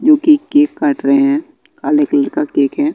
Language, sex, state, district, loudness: Hindi, male, Bihar, West Champaran, -14 LUFS